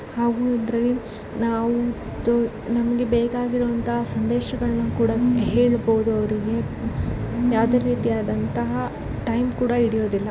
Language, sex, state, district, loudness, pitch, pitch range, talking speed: Kannada, female, Karnataka, Shimoga, -22 LUFS, 230 Hz, 200-240 Hz, 95 wpm